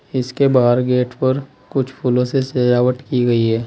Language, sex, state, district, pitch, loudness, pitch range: Hindi, male, Uttar Pradesh, Saharanpur, 125 Hz, -17 LUFS, 125-130 Hz